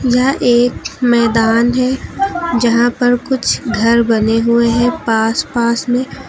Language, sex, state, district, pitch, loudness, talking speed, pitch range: Hindi, female, Uttar Pradesh, Lucknow, 240 Hz, -14 LUFS, 135 wpm, 230-255 Hz